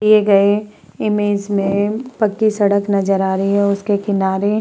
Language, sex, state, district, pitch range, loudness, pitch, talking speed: Hindi, female, Uttar Pradesh, Muzaffarnagar, 200-210 Hz, -16 LUFS, 205 Hz, 170 wpm